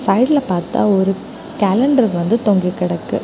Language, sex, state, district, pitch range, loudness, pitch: Tamil, female, Tamil Nadu, Kanyakumari, 180-245 Hz, -16 LUFS, 205 Hz